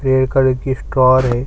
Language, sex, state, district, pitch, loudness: Hindi, male, Chhattisgarh, Sukma, 130 Hz, -15 LUFS